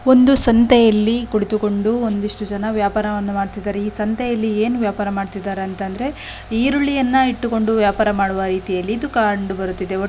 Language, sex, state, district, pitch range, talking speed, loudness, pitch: Kannada, female, Karnataka, Shimoga, 200-235 Hz, 125 wpm, -18 LUFS, 210 Hz